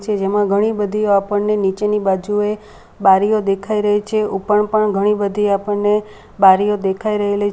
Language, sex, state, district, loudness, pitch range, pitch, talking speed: Gujarati, female, Gujarat, Valsad, -16 LUFS, 200-210 Hz, 205 Hz, 150 wpm